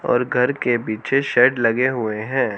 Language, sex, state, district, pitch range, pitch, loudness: Hindi, male, Haryana, Charkhi Dadri, 115-130 Hz, 125 Hz, -19 LUFS